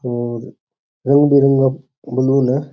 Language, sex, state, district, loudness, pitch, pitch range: Rajasthani, male, Rajasthan, Churu, -15 LUFS, 135 Hz, 125-140 Hz